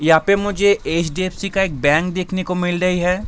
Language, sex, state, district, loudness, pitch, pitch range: Hindi, male, Bihar, Saharsa, -18 LUFS, 180 Hz, 170-195 Hz